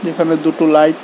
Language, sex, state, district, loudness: Bengali, male, Tripura, West Tripura, -13 LUFS